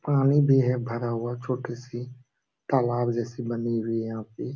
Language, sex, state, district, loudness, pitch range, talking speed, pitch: Hindi, male, Uttar Pradesh, Jalaun, -26 LUFS, 115-125 Hz, 170 wpm, 120 Hz